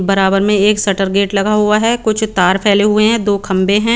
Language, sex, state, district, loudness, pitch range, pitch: Hindi, female, Chandigarh, Chandigarh, -13 LUFS, 195-215 Hz, 205 Hz